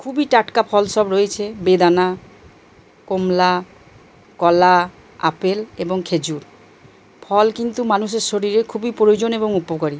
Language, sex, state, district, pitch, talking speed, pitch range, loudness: Bengali, male, Jharkhand, Jamtara, 200 Hz, 115 wpm, 180-220 Hz, -18 LUFS